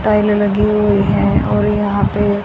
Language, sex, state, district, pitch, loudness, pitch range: Hindi, female, Haryana, Jhajjar, 205 Hz, -14 LUFS, 205-210 Hz